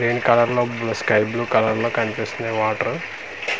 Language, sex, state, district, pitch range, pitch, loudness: Telugu, male, Andhra Pradesh, Manyam, 110-120 Hz, 115 Hz, -21 LUFS